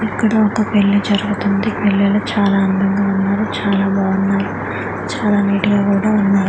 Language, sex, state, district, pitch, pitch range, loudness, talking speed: Telugu, female, Andhra Pradesh, Manyam, 200 Hz, 195-210 Hz, -16 LUFS, 140 wpm